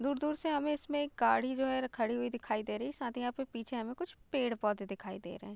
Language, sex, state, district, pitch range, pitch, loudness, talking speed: Hindi, female, Bihar, Gopalganj, 225-280 Hz, 245 Hz, -36 LUFS, 300 wpm